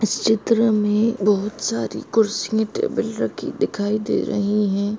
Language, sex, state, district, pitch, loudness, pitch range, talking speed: Hindi, female, Jharkhand, Jamtara, 210 Hz, -21 LUFS, 205-220 Hz, 145 wpm